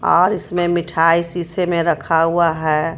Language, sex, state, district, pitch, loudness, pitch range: Hindi, female, Jharkhand, Ranchi, 170 Hz, -17 LUFS, 165-175 Hz